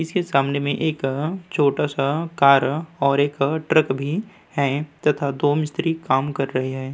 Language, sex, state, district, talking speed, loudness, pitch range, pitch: Hindi, male, Uttar Pradesh, Budaun, 165 wpm, -21 LUFS, 140-155 Hz, 145 Hz